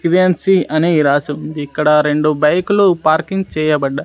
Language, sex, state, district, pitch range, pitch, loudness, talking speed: Telugu, male, Andhra Pradesh, Sri Satya Sai, 150-180 Hz, 155 Hz, -14 LUFS, 135 wpm